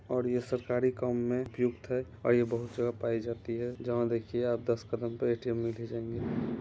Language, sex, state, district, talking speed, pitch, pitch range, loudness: Hindi, male, Bihar, Muzaffarpur, 220 wpm, 120 Hz, 115-125 Hz, -33 LUFS